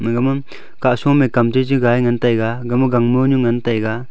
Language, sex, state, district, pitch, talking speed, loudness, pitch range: Wancho, male, Arunachal Pradesh, Longding, 120 Hz, 220 wpm, -16 LUFS, 120-130 Hz